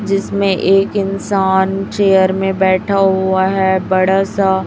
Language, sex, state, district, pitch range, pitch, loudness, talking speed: Hindi, female, Chhattisgarh, Raipur, 190-195 Hz, 195 Hz, -14 LUFS, 130 wpm